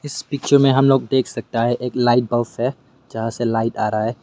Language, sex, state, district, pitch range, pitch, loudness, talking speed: Hindi, male, Meghalaya, West Garo Hills, 115-135 Hz, 125 Hz, -19 LUFS, 255 wpm